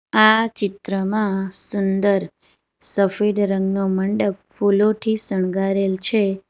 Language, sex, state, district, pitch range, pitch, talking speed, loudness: Gujarati, female, Gujarat, Valsad, 195-210 Hz, 200 Hz, 85 wpm, -19 LUFS